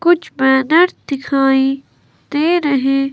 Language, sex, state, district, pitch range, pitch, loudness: Hindi, female, Himachal Pradesh, Shimla, 270-330 Hz, 275 Hz, -15 LUFS